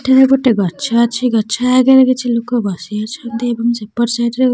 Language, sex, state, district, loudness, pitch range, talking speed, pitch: Odia, female, Odisha, Khordha, -14 LUFS, 230-255 Hz, 200 wpm, 240 Hz